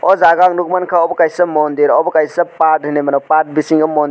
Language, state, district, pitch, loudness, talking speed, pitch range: Kokborok, Tripura, West Tripura, 155 Hz, -13 LUFS, 235 wpm, 150-175 Hz